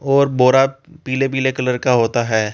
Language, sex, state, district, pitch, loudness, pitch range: Hindi, male, Rajasthan, Jaipur, 130 Hz, -16 LUFS, 125-135 Hz